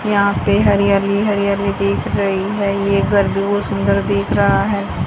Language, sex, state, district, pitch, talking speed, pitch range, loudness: Hindi, female, Haryana, Charkhi Dadri, 200 Hz, 180 wpm, 195-200 Hz, -16 LUFS